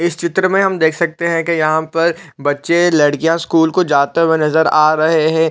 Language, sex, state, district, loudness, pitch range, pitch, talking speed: Hindi, male, Chhattisgarh, Raigarh, -14 LUFS, 155-170 Hz, 160 Hz, 230 wpm